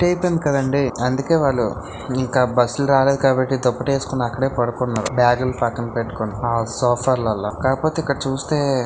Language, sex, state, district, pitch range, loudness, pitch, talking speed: Telugu, male, Andhra Pradesh, Visakhapatnam, 120-135 Hz, -20 LUFS, 130 Hz, 135 wpm